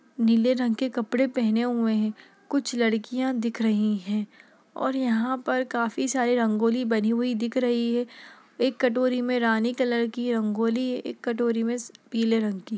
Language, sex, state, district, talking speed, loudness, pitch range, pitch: Hindi, female, Bihar, Darbhanga, 180 wpm, -25 LUFS, 225-250 Hz, 235 Hz